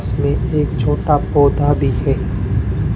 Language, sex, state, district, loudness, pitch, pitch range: Hindi, male, Rajasthan, Bikaner, -17 LUFS, 140 Hz, 110-145 Hz